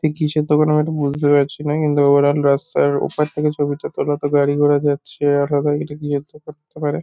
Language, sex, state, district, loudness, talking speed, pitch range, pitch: Bengali, male, West Bengal, North 24 Parganas, -18 LUFS, 195 wpm, 145-150 Hz, 145 Hz